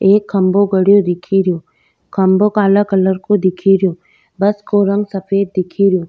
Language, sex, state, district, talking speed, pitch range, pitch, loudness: Rajasthani, female, Rajasthan, Nagaur, 150 wpm, 185-200 Hz, 195 Hz, -14 LUFS